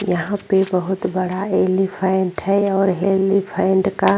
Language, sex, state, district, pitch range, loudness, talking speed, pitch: Hindi, female, Uttar Pradesh, Jyotiba Phule Nagar, 185-195 Hz, -18 LUFS, 145 wpm, 190 Hz